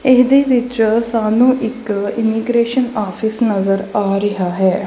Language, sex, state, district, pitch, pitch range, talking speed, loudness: Punjabi, female, Punjab, Kapurthala, 220 Hz, 200-240 Hz, 125 wpm, -15 LUFS